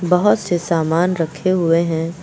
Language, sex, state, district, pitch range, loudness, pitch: Hindi, female, Uttar Pradesh, Lucknow, 165-180 Hz, -17 LUFS, 170 Hz